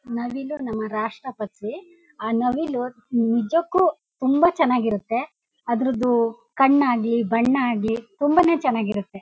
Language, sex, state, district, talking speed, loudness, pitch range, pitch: Kannada, female, Karnataka, Shimoga, 125 wpm, -22 LUFS, 225-285 Hz, 245 Hz